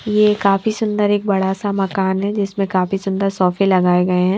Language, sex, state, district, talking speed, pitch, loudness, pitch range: Hindi, female, Himachal Pradesh, Shimla, 205 wpm, 195 Hz, -17 LUFS, 190-205 Hz